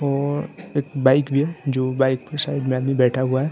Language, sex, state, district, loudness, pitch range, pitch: Hindi, male, Uttar Pradesh, Muzaffarnagar, -21 LUFS, 130-145 Hz, 135 Hz